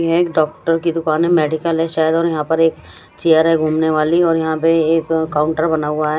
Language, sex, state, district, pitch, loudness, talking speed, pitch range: Hindi, female, Punjab, Fazilka, 160 Hz, -16 LUFS, 240 wpm, 155-165 Hz